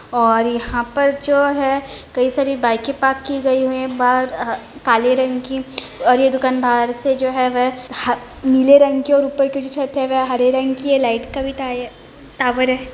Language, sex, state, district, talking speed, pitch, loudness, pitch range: Hindi, female, Bihar, Begusarai, 220 wpm, 260 Hz, -17 LUFS, 250-275 Hz